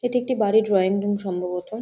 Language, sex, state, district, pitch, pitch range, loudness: Bengali, female, West Bengal, Jhargram, 205 Hz, 190-225 Hz, -22 LUFS